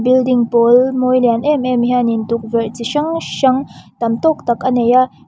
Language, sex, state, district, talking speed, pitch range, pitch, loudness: Mizo, female, Mizoram, Aizawl, 195 wpm, 235-255 Hz, 245 Hz, -15 LUFS